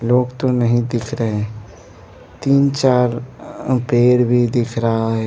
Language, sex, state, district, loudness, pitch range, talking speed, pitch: Hindi, male, Arunachal Pradesh, Lower Dibang Valley, -17 LUFS, 115-125 Hz, 135 wpm, 120 Hz